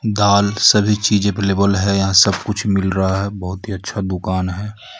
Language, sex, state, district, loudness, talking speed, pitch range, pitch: Hindi, male, Jharkhand, Ranchi, -16 LUFS, 190 wpm, 95-105 Hz, 100 Hz